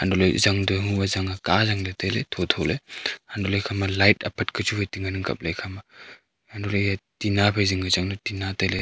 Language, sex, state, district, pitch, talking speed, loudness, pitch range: Wancho, male, Arunachal Pradesh, Longding, 100 Hz, 185 wpm, -24 LUFS, 95-100 Hz